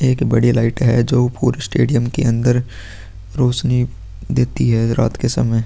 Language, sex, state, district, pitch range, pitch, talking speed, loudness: Hindi, male, Uttar Pradesh, Hamirpur, 115-125 Hz, 120 Hz, 170 wpm, -17 LUFS